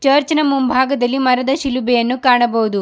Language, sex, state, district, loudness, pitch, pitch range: Kannada, female, Karnataka, Bidar, -15 LUFS, 255 Hz, 245-275 Hz